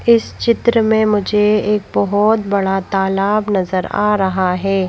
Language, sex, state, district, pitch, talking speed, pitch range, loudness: Hindi, female, Madhya Pradesh, Bhopal, 205 Hz, 145 wpm, 190-215 Hz, -15 LUFS